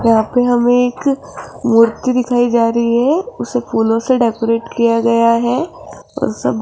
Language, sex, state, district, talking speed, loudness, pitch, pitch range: Hindi, female, Rajasthan, Jaipur, 170 wpm, -15 LUFS, 235 Hz, 230-250 Hz